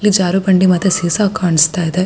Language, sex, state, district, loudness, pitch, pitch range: Kannada, female, Karnataka, Shimoga, -13 LUFS, 185 Hz, 175-190 Hz